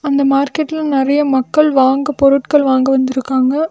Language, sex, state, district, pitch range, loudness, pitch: Tamil, female, Tamil Nadu, Nilgiris, 265-295 Hz, -13 LUFS, 275 Hz